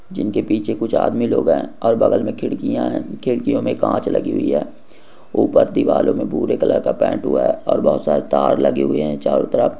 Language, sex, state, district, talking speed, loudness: Hindi, male, West Bengal, Jhargram, 215 wpm, -18 LUFS